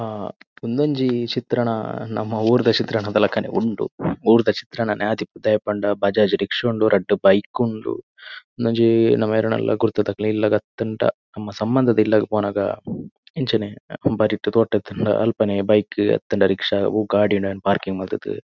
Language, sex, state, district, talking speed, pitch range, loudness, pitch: Tulu, male, Karnataka, Dakshina Kannada, 145 wpm, 105-115 Hz, -20 LUFS, 110 Hz